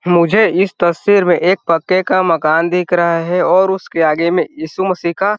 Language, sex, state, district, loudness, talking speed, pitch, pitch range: Hindi, male, Chhattisgarh, Sarguja, -14 LUFS, 210 wpm, 175 Hz, 170-190 Hz